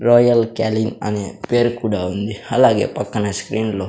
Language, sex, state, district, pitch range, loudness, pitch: Telugu, male, Andhra Pradesh, Sri Satya Sai, 105-115 Hz, -18 LUFS, 110 Hz